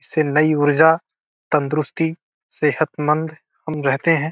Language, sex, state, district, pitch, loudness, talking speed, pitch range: Hindi, male, Bihar, Gopalganj, 155 Hz, -19 LUFS, 125 wpm, 150-160 Hz